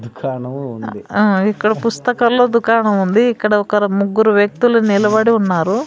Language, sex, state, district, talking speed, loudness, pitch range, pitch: Telugu, female, Andhra Pradesh, Sri Satya Sai, 100 wpm, -15 LUFS, 190-230 Hz, 210 Hz